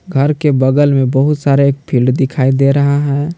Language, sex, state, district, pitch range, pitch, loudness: Hindi, male, Jharkhand, Palamu, 135-145 Hz, 140 Hz, -12 LUFS